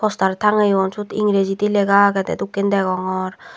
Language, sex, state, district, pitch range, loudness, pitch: Chakma, female, Tripura, Dhalai, 190-205 Hz, -18 LUFS, 200 Hz